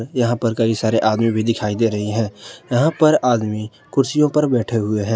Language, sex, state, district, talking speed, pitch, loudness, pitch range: Hindi, male, Jharkhand, Ranchi, 210 wpm, 115 Hz, -18 LUFS, 110-130 Hz